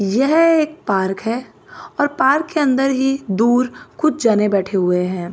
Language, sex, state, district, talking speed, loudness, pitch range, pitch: Hindi, female, Delhi, New Delhi, 170 wpm, -17 LUFS, 195-290 Hz, 255 Hz